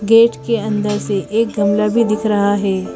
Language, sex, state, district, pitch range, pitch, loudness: Hindi, female, Madhya Pradesh, Bhopal, 205-225 Hz, 210 Hz, -16 LUFS